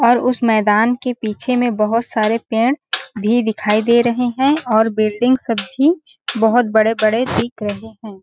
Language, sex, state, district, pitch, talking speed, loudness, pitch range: Hindi, female, Chhattisgarh, Balrampur, 230 Hz, 175 wpm, -16 LUFS, 215-245 Hz